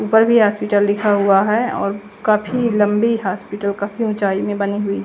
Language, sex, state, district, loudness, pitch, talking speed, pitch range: Hindi, female, Chandigarh, Chandigarh, -17 LUFS, 205 Hz, 180 wpm, 200-220 Hz